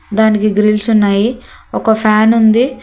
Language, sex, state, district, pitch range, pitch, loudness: Telugu, female, Telangana, Hyderabad, 210-230 Hz, 220 Hz, -12 LUFS